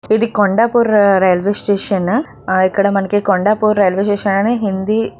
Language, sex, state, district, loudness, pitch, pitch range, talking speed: Telugu, female, Telangana, Nalgonda, -14 LUFS, 205 Hz, 195-215 Hz, 150 wpm